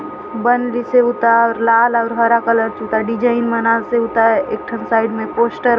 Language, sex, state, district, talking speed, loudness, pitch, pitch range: Halbi, female, Chhattisgarh, Bastar, 165 wpm, -15 LUFS, 230 Hz, 230-240 Hz